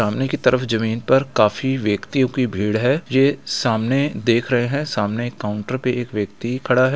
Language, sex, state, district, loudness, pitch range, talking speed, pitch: Hindi, male, Bihar, Gaya, -20 LUFS, 110-130 Hz, 190 wpm, 125 Hz